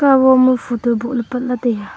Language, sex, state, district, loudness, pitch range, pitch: Wancho, female, Arunachal Pradesh, Longding, -16 LUFS, 240-255 Hz, 250 Hz